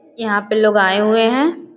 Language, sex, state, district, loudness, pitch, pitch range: Hindi, female, Uttar Pradesh, Gorakhpur, -15 LUFS, 215 Hz, 205-240 Hz